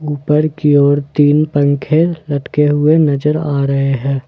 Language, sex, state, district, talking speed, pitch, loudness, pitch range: Hindi, male, Jharkhand, Ranchi, 170 wpm, 145 Hz, -13 LUFS, 140-150 Hz